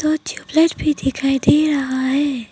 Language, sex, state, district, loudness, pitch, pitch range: Hindi, female, Arunachal Pradesh, Papum Pare, -18 LUFS, 280 Hz, 270-310 Hz